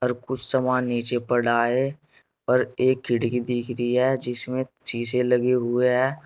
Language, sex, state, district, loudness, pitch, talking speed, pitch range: Hindi, male, Uttar Pradesh, Saharanpur, -21 LUFS, 125 Hz, 155 wpm, 120-130 Hz